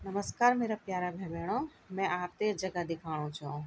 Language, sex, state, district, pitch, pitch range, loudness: Garhwali, female, Uttarakhand, Tehri Garhwal, 180 Hz, 165-205 Hz, -34 LUFS